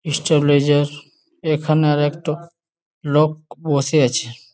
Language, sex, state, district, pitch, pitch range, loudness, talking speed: Bengali, male, West Bengal, Jalpaiguri, 150 Hz, 145-160 Hz, -18 LUFS, 105 wpm